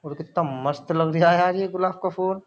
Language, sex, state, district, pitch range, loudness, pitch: Hindi, male, Uttar Pradesh, Jyotiba Phule Nagar, 160-185 Hz, -23 LUFS, 175 Hz